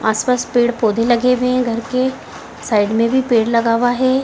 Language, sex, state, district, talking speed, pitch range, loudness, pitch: Hindi, female, Bihar, Samastipur, 200 wpm, 230-250 Hz, -16 LUFS, 240 Hz